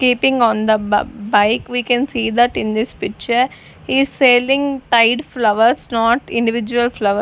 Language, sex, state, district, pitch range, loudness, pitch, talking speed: English, female, Punjab, Fazilka, 220-255 Hz, -16 LUFS, 235 Hz, 150 wpm